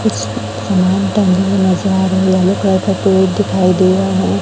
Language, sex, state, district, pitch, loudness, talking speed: Hindi, male, Chhattisgarh, Raipur, 185 Hz, -13 LUFS, 120 wpm